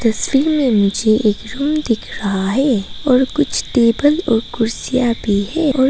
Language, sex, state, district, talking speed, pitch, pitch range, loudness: Hindi, female, Arunachal Pradesh, Papum Pare, 150 wpm, 240 Hz, 220-275 Hz, -16 LUFS